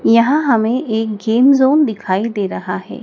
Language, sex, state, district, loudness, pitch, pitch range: Hindi, female, Madhya Pradesh, Dhar, -15 LUFS, 230 Hz, 215-265 Hz